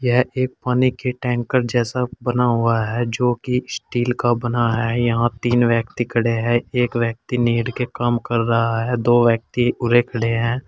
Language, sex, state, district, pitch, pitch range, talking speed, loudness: Hindi, male, Uttar Pradesh, Saharanpur, 120 Hz, 115-125 Hz, 185 wpm, -19 LUFS